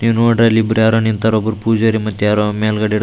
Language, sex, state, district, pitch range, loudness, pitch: Kannada, male, Karnataka, Raichur, 110-115 Hz, -14 LUFS, 110 Hz